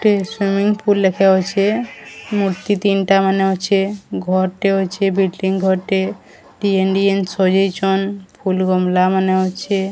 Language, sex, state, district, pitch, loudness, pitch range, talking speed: Odia, female, Odisha, Sambalpur, 195 Hz, -17 LUFS, 190-200 Hz, 125 wpm